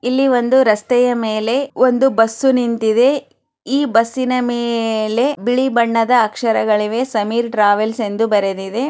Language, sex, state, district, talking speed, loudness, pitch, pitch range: Kannada, female, Karnataka, Chamarajanagar, 120 wpm, -16 LUFS, 235 Hz, 220-255 Hz